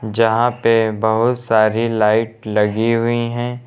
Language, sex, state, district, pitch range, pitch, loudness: Hindi, male, Uttar Pradesh, Lucknow, 110-120 Hz, 115 Hz, -17 LUFS